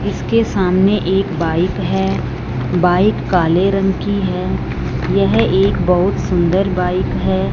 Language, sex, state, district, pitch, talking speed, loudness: Hindi, male, Punjab, Fazilka, 180 Hz, 130 wpm, -16 LUFS